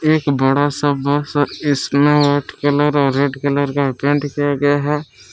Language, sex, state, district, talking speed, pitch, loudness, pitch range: Hindi, male, Jharkhand, Palamu, 180 wpm, 145 Hz, -17 LUFS, 140-145 Hz